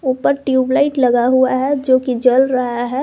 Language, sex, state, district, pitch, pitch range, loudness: Hindi, female, Jharkhand, Garhwa, 255 Hz, 250-265 Hz, -15 LUFS